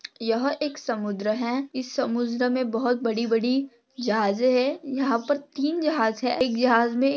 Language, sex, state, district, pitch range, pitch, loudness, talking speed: Hindi, female, Maharashtra, Pune, 230-270 Hz, 250 Hz, -25 LUFS, 150 wpm